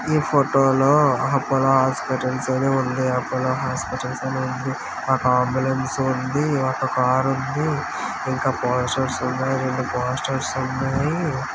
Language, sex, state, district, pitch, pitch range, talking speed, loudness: Telugu, male, Andhra Pradesh, Visakhapatnam, 130 Hz, 130-135 Hz, 130 wpm, -21 LUFS